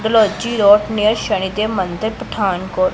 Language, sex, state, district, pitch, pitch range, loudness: Hindi, female, Punjab, Pathankot, 210 Hz, 190-220 Hz, -16 LUFS